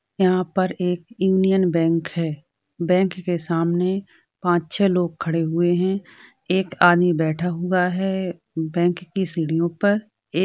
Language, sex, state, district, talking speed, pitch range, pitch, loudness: Hindi, male, Bihar, Jamui, 150 wpm, 170-185 Hz, 180 Hz, -21 LUFS